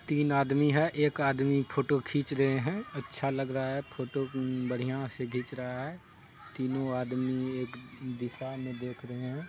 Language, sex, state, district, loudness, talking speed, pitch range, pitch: Hindi, male, Bihar, Saharsa, -32 LUFS, 170 wpm, 125-140 Hz, 130 Hz